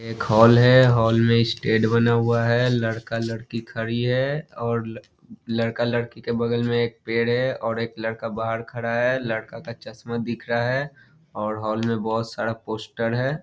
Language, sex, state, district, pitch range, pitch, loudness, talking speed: Hindi, male, Bihar, Muzaffarpur, 115-120 Hz, 115 Hz, -22 LUFS, 175 wpm